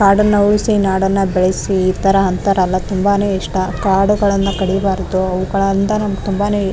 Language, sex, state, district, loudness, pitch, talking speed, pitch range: Kannada, female, Karnataka, Raichur, -15 LUFS, 195 Hz, 125 wpm, 190-200 Hz